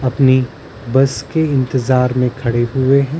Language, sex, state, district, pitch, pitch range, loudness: Hindi, male, Maharashtra, Mumbai Suburban, 130 Hz, 125-135 Hz, -15 LUFS